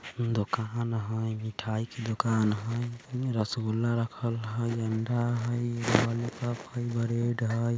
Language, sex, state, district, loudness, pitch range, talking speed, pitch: Hindi, male, Bihar, Vaishali, -30 LUFS, 110-120 Hz, 90 wpm, 115 Hz